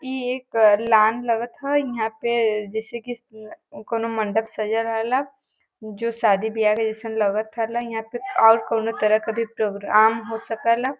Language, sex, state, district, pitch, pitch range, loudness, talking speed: Bhojpuri, female, Uttar Pradesh, Varanasi, 225 Hz, 220-235 Hz, -22 LUFS, 165 wpm